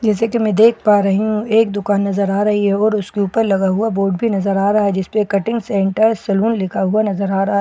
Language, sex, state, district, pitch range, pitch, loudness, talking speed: Hindi, female, Bihar, Katihar, 195-220 Hz, 205 Hz, -16 LUFS, 285 wpm